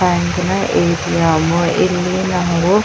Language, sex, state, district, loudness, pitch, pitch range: Kannada, female, Karnataka, Chamarajanagar, -15 LUFS, 175 Hz, 170-185 Hz